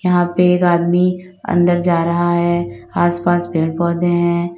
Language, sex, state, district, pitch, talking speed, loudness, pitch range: Hindi, female, Uttar Pradesh, Lalitpur, 175 Hz, 155 wpm, -16 LUFS, 170-175 Hz